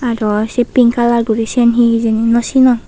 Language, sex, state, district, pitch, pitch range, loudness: Chakma, female, Tripura, Unakoti, 235 Hz, 225-240 Hz, -13 LUFS